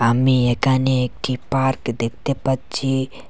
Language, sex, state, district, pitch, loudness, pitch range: Bengali, male, Assam, Hailakandi, 130 Hz, -20 LUFS, 120-135 Hz